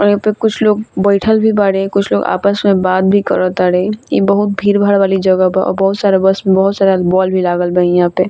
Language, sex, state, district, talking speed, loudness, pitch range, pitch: Bhojpuri, female, Bihar, Saran, 245 wpm, -12 LUFS, 185-205 Hz, 195 Hz